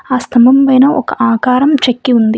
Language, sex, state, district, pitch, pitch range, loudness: Telugu, female, Telangana, Hyderabad, 255 Hz, 245-270 Hz, -10 LUFS